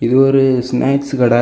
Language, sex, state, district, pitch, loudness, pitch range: Tamil, male, Tamil Nadu, Kanyakumari, 130 Hz, -14 LUFS, 125-135 Hz